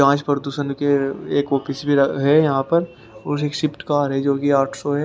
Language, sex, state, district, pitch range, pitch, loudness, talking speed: Hindi, male, Haryana, Rohtak, 140-145 Hz, 140 Hz, -20 LUFS, 215 wpm